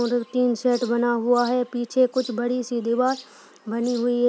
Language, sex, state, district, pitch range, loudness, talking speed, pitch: Hindi, female, Uttar Pradesh, Deoria, 240-250 Hz, -23 LUFS, 195 wpm, 245 Hz